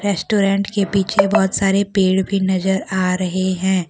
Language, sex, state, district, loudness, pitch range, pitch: Hindi, female, Jharkhand, Deoghar, -17 LUFS, 185-200 Hz, 190 Hz